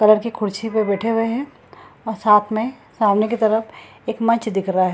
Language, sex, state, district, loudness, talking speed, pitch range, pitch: Hindi, female, Bihar, Samastipur, -19 LUFS, 205 wpm, 210-230 Hz, 220 Hz